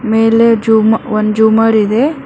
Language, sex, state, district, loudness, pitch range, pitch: Kannada, female, Karnataka, Bangalore, -11 LUFS, 220-230 Hz, 225 Hz